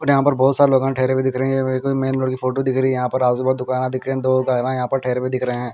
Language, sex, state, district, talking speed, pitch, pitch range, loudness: Hindi, male, Bihar, Patna, 345 wpm, 130 Hz, 130-135 Hz, -19 LUFS